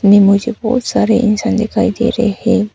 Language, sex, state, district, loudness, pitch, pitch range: Hindi, female, Arunachal Pradesh, Papum Pare, -13 LUFS, 225 Hz, 210-235 Hz